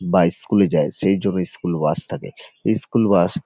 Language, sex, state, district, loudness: Bengali, male, West Bengal, North 24 Parganas, -20 LUFS